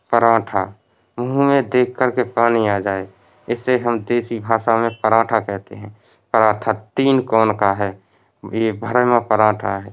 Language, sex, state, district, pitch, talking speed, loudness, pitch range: Hindi, male, Uttar Pradesh, Varanasi, 115 Hz, 165 wpm, -18 LUFS, 105-120 Hz